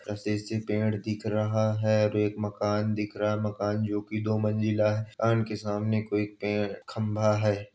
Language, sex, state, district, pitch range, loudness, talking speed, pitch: Hindi, male, Uttar Pradesh, Jalaun, 105-110 Hz, -28 LUFS, 195 wpm, 105 Hz